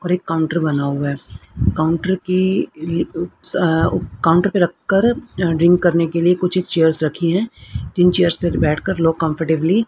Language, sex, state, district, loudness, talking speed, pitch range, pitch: Hindi, female, Haryana, Rohtak, -18 LUFS, 180 wpm, 160-180 Hz, 170 Hz